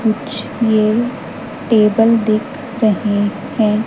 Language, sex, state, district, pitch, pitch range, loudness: Hindi, female, Haryana, Jhajjar, 220 Hz, 215-235 Hz, -16 LUFS